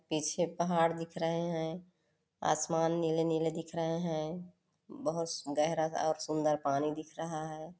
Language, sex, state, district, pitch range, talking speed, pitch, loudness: Hindi, female, Chhattisgarh, Korba, 155-165 Hz, 145 wpm, 160 Hz, -34 LUFS